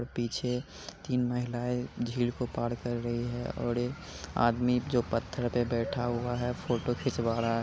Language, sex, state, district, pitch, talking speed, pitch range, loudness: Hindi, male, Bihar, Jamui, 120 Hz, 175 wpm, 120-125 Hz, -32 LUFS